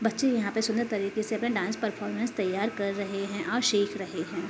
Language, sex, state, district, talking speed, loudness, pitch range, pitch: Hindi, female, Uttar Pradesh, Hamirpur, 225 wpm, -29 LUFS, 200-225 Hz, 210 Hz